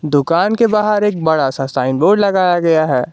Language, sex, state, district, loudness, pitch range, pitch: Hindi, male, Jharkhand, Garhwa, -14 LUFS, 140-205 Hz, 165 Hz